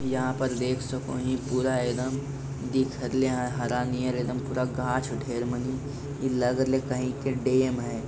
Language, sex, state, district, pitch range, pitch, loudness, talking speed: Hindi, male, Bihar, Lakhisarai, 125-130 Hz, 130 Hz, -28 LUFS, 180 wpm